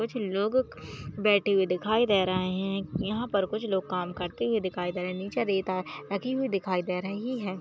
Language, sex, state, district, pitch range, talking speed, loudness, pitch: Hindi, female, Maharashtra, Aurangabad, 185-210 Hz, 215 wpm, -29 LUFS, 195 Hz